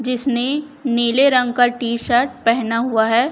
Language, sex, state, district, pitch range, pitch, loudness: Hindi, female, Chhattisgarh, Raipur, 235-255 Hz, 245 Hz, -17 LUFS